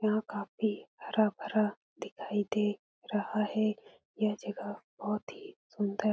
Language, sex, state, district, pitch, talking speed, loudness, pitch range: Hindi, female, Bihar, Lakhisarai, 210 Hz, 125 wpm, -34 LUFS, 210-215 Hz